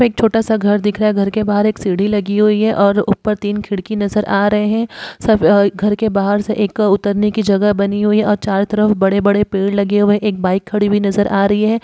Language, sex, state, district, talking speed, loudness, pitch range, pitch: Hindi, female, Uttar Pradesh, Muzaffarnagar, 275 wpm, -15 LUFS, 200-210 Hz, 205 Hz